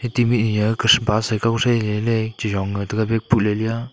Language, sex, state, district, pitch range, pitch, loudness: Wancho, male, Arunachal Pradesh, Longding, 105-115 Hz, 110 Hz, -19 LUFS